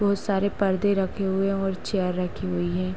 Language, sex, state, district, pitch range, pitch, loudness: Hindi, female, Uttar Pradesh, Hamirpur, 180-200 Hz, 195 Hz, -25 LUFS